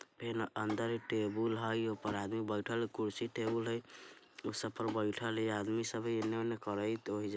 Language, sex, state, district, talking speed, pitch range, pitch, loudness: Bajjika, male, Bihar, Vaishali, 180 wpm, 105-115 Hz, 110 Hz, -38 LUFS